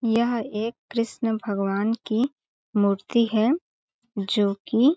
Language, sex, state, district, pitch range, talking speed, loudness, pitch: Hindi, female, Chhattisgarh, Balrampur, 205-235 Hz, 95 wpm, -25 LUFS, 225 Hz